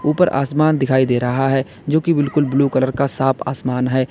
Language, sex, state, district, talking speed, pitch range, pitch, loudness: Hindi, male, Uttar Pradesh, Lalitpur, 220 wpm, 130-145 Hz, 135 Hz, -17 LUFS